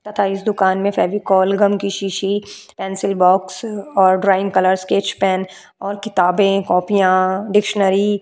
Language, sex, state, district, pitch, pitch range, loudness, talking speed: Hindi, female, Uttar Pradesh, Budaun, 195 Hz, 190-205 Hz, -17 LUFS, 145 wpm